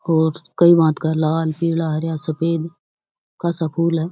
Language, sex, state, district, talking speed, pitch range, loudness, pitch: Rajasthani, female, Rajasthan, Churu, 175 wpm, 160-170 Hz, -19 LUFS, 165 Hz